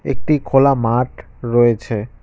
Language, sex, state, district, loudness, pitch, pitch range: Bengali, male, West Bengal, Cooch Behar, -16 LUFS, 120 Hz, 115-135 Hz